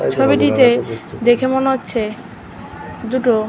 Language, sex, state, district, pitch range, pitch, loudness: Bengali, female, West Bengal, North 24 Parganas, 225-260 Hz, 240 Hz, -16 LUFS